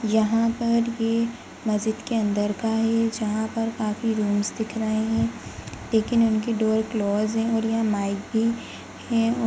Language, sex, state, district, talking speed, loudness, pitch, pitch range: Hindi, female, Bihar, Begusarai, 175 wpm, -24 LUFS, 225 Hz, 215-230 Hz